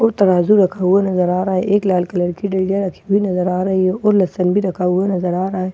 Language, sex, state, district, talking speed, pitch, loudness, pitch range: Hindi, female, Bihar, Katihar, 305 wpm, 185 Hz, -16 LUFS, 180-195 Hz